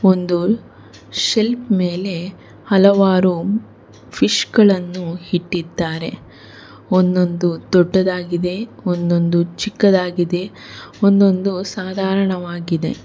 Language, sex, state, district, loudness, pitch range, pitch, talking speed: Kannada, female, Karnataka, Bangalore, -17 LUFS, 175-195 Hz, 180 Hz, 60 wpm